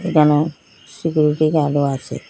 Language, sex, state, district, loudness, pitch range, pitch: Bengali, female, Assam, Hailakandi, -18 LUFS, 150-155 Hz, 150 Hz